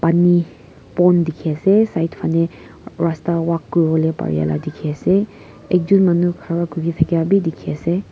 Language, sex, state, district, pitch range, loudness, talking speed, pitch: Nagamese, female, Nagaland, Kohima, 160-175 Hz, -18 LUFS, 160 wpm, 170 Hz